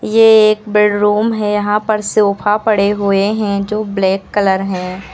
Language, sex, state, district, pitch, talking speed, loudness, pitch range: Hindi, female, Uttar Pradesh, Lucknow, 210 Hz, 165 wpm, -14 LUFS, 200-215 Hz